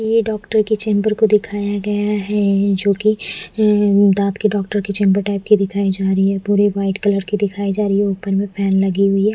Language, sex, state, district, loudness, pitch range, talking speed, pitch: Hindi, female, Punjab, Fazilka, -17 LUFS, 195-210 Hz, 225 wpm, 205 Hz